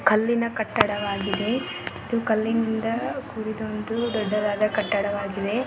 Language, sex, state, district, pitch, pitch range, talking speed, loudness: Kannada, female, Karnataka, Belgaum, 215 Hz, 205-230 Hz, 85 wpm, -25 LUFS